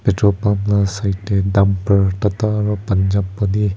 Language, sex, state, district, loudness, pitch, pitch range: Nagamese, male, Nagaland, Kohima, -17 LUFS, 100 Hz, 100-105 Hz